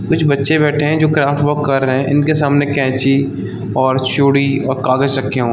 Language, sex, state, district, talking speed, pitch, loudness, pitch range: Hindi, male, Chhattisgarh, Balrampur, 195 wpm, 140 Hz, -14 LUFS, 130-145 Hz